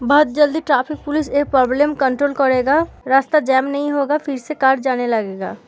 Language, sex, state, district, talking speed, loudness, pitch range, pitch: Hindi, female, Bihar, Samastipur, 180 wpm, -17 LUFS, 260-295 Hz, 280 Hz